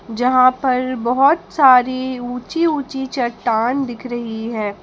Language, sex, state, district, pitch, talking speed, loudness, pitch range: Hindi, female, Jharkhand, Palamu, 255 Hz, 125 wpm, -17 LUFS, 240-265 Hz